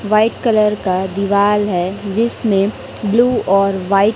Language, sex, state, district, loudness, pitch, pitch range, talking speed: Hindi, female, Chhattisgarh, Raipur, -16 LUFS, 205 Hz, 195-215 Hz, 145 wpm